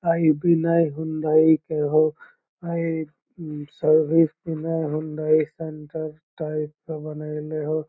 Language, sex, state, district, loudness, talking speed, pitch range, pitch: Magahi, male, Bihar, Lakhisarai, -23 LUFS, 120 wpm, 155-165 Hz, 155 Hz